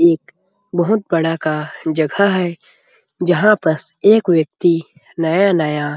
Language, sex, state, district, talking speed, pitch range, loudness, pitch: Hindi, male, Chhattisgarh, Sarguja, 110 wpm, 160-190 Hz, -16 LUFS, 170 Hz